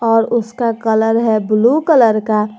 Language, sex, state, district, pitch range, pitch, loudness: Hindi, female, Jharkhand, Garhwa, 220-235 Hz, 225 Hz, -14 LUFS